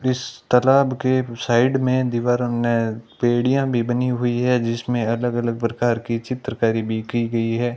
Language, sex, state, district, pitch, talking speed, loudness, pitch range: Hindi, male, Rajasthan, Bikaner, 120 Hz, 170 wpm, -21 LUFS, 115-125 Hz